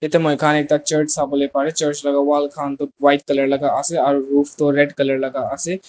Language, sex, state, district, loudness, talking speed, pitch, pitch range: Nagamese, male, Nagaland, Dimapur, -18 LUFS, 225 wpm, 145 Hz, 140-150 Hz